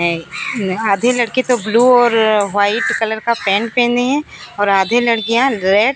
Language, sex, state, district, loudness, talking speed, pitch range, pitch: Hindi, female, Odisha, Sambalpur, -15 LUFS, 180 wpm, 205-245 Hz, 225 Hz